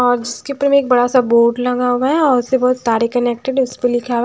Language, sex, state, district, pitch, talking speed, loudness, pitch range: Hindi, female, Haryana, Charkhi Dadri, 245 Hz, 295 wpm, -15 LUFS, 240-260 Hz